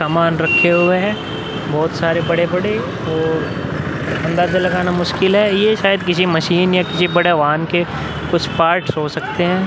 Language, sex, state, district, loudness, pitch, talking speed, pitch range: Hindi, male, Bihar, Vaishali, -16 LUFS, 170 Hz, 155 wpm, 160-180 Hz